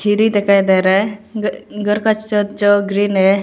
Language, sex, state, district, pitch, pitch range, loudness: Hindi, female, Arunachal Pradesh, Lower Dibang Valley, 205 Hz, 200-210 Hz, -15 LUFS